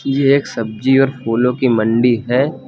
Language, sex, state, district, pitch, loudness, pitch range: Hindi, male, Uttar Pradesh, Lucknow, 125 Hz, -15 LUFS, 115-135 Hz